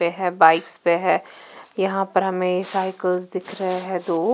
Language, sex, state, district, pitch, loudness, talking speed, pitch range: Hindi, female, Punjab, Fazilka, 185 Hz, -21 LUFS, 180 wpm, 175-190 Hz